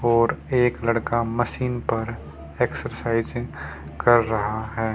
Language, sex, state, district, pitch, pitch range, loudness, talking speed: Hindi, male, Haryana, Rohtak, 115 Hz, 110-120 Hz, -23 LUFS, 110 wpm